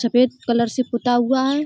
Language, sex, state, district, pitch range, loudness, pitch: Hindi, female, Uttar Pradesh, Budaun, 235-265 Hz, -19 LUFS, 245 Hz